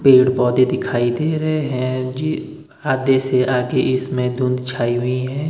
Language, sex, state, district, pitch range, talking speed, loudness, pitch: Hindi, male, Himachal Pradesh, Shimla, 125-140 Hz, 165 wpm, -18 LUFS, 130 Hz